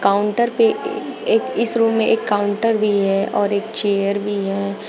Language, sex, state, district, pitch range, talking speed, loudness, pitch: Hindi, female, Uttar Pradesh, Shamli, 200-225 Hz, 185 wpm, -18 LUFS, 205 Hz